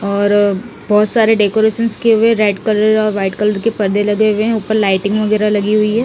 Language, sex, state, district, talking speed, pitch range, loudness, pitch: Hindi, female, Punjab, Fazilka, 220 wpm, 205-220 Hz, -14 LUFS, 215 Hz